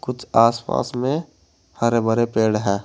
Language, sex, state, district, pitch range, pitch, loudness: Hindi, male, Uttar Pradesh, Saharanpur, 105-125 Hz, 115 Hz, -20 LUFS